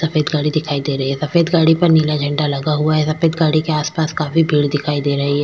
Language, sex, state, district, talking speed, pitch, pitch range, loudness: Hindi, female, Maharashtra, Chandrapur, 275 wpm, 155 Hz, 145-160 Hz, -16 LUFS